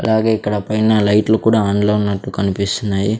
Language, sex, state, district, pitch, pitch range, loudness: Telugu, male, Andhra Pradesh, Sri Satya Sai, 105 Hz, 100-110 Hz, -16 LUFS